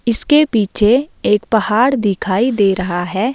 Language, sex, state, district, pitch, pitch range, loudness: Hindi, female, Himachal Pradesh, Shimla, 220 Hz, 200-250 Hz, -14 LUFS